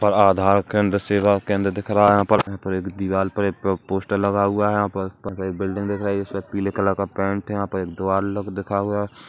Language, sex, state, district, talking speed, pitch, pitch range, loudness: Hindi, male, Chhattisgarh, Kabirdham, 265 wpm, 100 Hz, 95-100 Hz, -21 LUFS